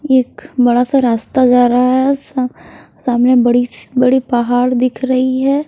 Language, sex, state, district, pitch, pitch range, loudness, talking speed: Hindi, female, Bihar, West Champaran, 255 Hz, 245-260 Hz, -13 LUFS, 170 wpm